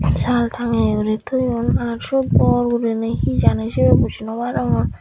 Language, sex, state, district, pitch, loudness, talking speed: Chakma, female, Tripura, Dhalai, 225 Hz, -18 LUFS, 155 wpm